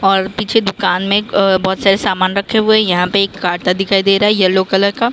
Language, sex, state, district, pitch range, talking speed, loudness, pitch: Hindi, female, Maharashtra, Mumbai Suburban, 190-205 Hz, 245 wpm, -13 LUFS, 195 Hz